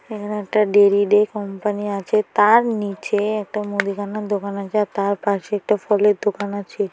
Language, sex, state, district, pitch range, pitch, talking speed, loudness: Bengali, female, West Bengal, Paschim Medinipur, 200-210 Hz, 205 Hz, 155 wpm, -20 LUFS